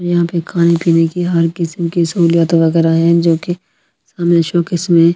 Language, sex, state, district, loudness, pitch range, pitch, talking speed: Hindi, female, Delhi, New Delhi, -14 LUFS, 165-175 Hz, 170 Hz, 185 wpm